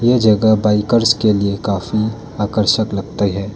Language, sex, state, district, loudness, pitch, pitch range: Hindi, male, Arunachal Pradesh, Lower Dibang Valley, -16 LUFS, 105 Hz, 100-110 Hz